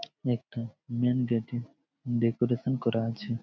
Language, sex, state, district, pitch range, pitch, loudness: Bengali, male, West Bengal, Jhargram, 115-125 Hz, 120 Hz, -30 LUFS